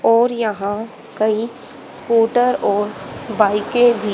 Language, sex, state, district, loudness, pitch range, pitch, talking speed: Hindi, female, Haryana, Jhajjar, -18 LUFS, 210-240 Hz, 225 Hz, 100 wpm